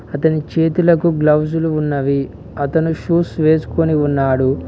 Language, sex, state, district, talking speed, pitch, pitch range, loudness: Telugu, male, Telangana, Mahabubabad, 105 wpm, 155 Hz, 140-160 Hz, -16 LUFS